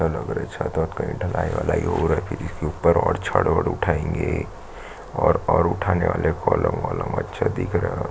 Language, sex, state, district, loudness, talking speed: Hindi, male, Chhattisgarh, Jashpur, -23 LUFS, 190 wpm